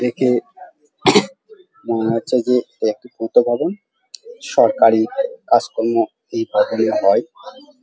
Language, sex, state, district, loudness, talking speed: Bengali, male, West Bengal, Dakshin Dinajpur, -18 LUFS, 100 wpm